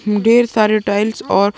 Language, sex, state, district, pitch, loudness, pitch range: Hindi, male, Chhattisgarh, Sukma, 215 Hz, -14 LUFS, 205-220 Hz